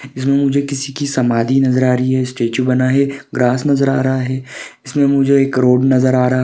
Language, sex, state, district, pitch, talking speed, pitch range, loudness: Hindi, male, Maharashtra, Sindhudurg, 130 Hz, 225 wpm, 130-140 Hz, -15 LUFS